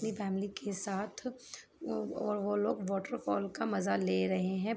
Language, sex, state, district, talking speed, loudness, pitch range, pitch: Hindi, female, Jharkhand, Sahebganj, 140 wpm, -35 LUFS, 190-210 Hz, 200 Hz